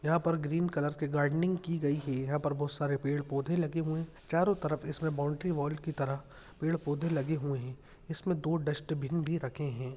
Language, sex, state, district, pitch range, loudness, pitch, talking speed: Hindi, male, Bihar, Jahanabad, 145-165 Hz, -33 LUFS, 150 Hz, 210 wpm